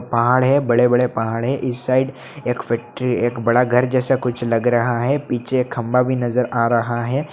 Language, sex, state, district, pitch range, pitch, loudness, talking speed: Hindi, male, Assam, Hailakandi, 120-130 Hz, 125 Hz, -19 LUFS, 215 wpm